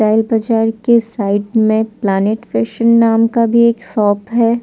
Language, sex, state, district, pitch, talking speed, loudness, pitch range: Hindi, female, Odisha, Sambalpur, 225 Hz, 170 wpm, -14 LUFS, 215-230 Hz